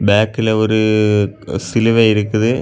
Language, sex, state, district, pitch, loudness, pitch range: Tamil, male, Tamil Nadu, Kanyakumari, 110 Hz, -15 LUFS, 105-110 Hz